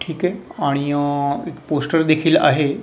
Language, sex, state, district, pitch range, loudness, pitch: Marathi, male, Maharashtra, Mumbai Suburban, 145-160 Hz, -19 LUFS, 150 Hz